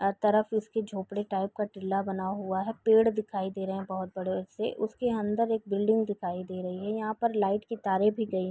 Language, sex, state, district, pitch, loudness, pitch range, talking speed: Hindi, female, Uttar Pradesh, Gorakhpur, 200 Hz, -30 LUFS, 190-220 Hz, 240 wpm